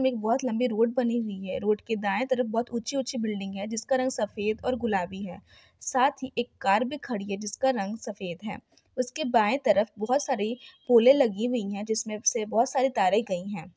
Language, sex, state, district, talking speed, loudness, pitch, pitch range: Hindi, female, Bihar, Saran, 210 wpm, -27 LUFS, 230 Hz, 210-255 Hz